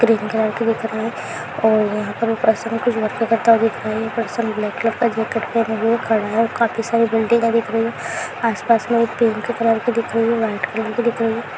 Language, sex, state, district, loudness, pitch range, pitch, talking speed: Hindi, female, Bihar, Purnia, -19 LUFS, 220-230 Hz, 230 Hz, 175 wpm